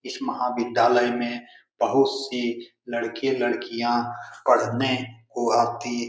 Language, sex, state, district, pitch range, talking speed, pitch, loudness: Hindi, male, Bihar, Lakhisarai, 120-130 Hz, 100 wpm, 120 Hz, -24 LUFS